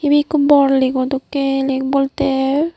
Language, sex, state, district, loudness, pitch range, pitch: Chakma, female, Tripura, Unakoti, -16 LUFS, 270-290 Hz, 275 Hz